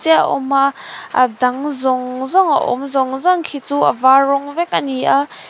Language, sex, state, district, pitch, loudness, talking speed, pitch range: Mizo, female, Mizoram, Aizawl, 275 Hz, -16 LUFS, 220 wpm, 260-285 Hz